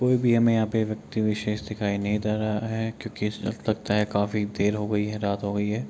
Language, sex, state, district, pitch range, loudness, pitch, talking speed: Hindi, male, Bihar, Kishanganj, 105-110 Hz, -26 LUFS, 105 Hz, 295 wpm